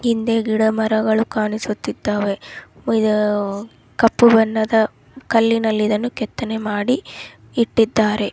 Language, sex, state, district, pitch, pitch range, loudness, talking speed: Kannada, female, Karnataka, Raichur, 220 Hz, 210-230 Hz, -18 LUFS, 100 wpm